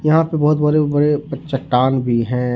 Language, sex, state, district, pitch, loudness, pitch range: Hindi, male, Jharkhand, Ranchi, 145 Hz, -17 LUFS, 125-150 Hz